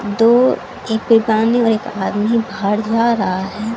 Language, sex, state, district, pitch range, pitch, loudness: Hindi, female, Haryana, Charkhi Dadri, 210-230 Hz, 225 Hz, -16 LUFS